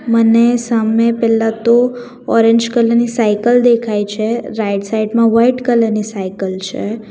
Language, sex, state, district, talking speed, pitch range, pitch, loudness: Gujarati, female, Gujarat, Valsad, 150 wpm, 215-235 Hz, 230 Hz, -14 LUFS